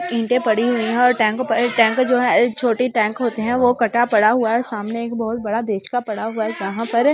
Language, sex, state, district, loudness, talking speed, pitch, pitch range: Hindi, female, Delhi, New Delhi, -18 LUFS, 250 wpm, 230 Hz, 220-245 Hz